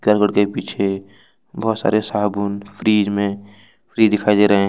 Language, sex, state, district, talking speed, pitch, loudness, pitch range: Hindi, male, Jharkhand, Ranchi, 155 wpm, 105 Hz, -18 LUFS, 100-105 Hz